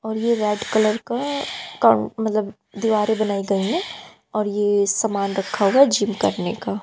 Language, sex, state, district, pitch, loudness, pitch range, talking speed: Hindi, female, Haryana, Jhajjar, 215 Hz, -21 LUFS, 200-225 Hz, 175 wpm